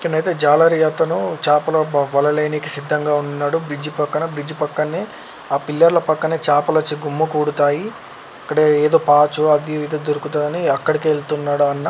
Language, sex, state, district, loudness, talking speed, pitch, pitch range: Telugu, male, Telangana, Karimnagar, -17 LUFS, 135 wpm, 150 Hz, 145-155 Hz